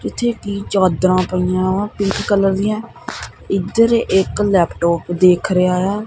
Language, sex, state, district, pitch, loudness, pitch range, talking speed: Punjabi, male, Punjab, Kapurthala, 190 Hz, -16 LUFS, 185-205 Hz, 140 wpm